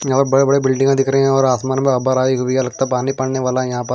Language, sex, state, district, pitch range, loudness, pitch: Hindi, male, Himachal Pradesh, Shimla, 130-135 Hz, -16 LUFS, 130 Hz